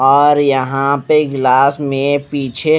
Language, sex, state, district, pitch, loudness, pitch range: Hindi, male, Punjab, Fazilka, 140 Hz, -14 LUFS, 135-145 Hz